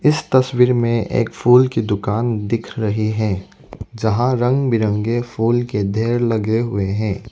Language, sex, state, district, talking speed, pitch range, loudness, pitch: Hindi, male, Arunachal Pradesh, Lower Dibang Valley, 155 wpm, 110-120 Hz, -18 LUFS, 115 Hz